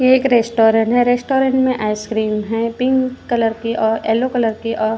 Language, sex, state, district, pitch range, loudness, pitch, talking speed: Hindi, female, Maharashtra, Gondia, 220-255 Hz, -16 LUFS, 230 Hz, 205 wpm